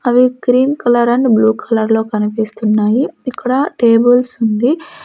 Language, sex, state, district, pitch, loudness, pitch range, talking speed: Telugu, female, Andhra Pradesh, Sri Satya Sai, 240 Hz, -13 LUFS, 220-255 Hz, 120 wpm